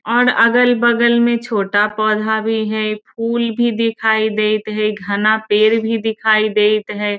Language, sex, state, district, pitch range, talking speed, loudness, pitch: Hindi, female, Bihar, Muzaffarpur, 215-230 Hz, 150 wpm, -15 LUFS, 220 Hz